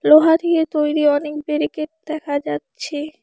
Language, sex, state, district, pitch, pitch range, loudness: Bengali, female, West Bengal, Alipurduar, 300 Hz, 295-315 Hz, -19 LUFS